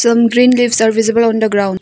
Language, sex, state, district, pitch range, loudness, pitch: English, female, Arunachal Pradesh, Longding, 220-235 Hz, -12 LUFS, 230 Hz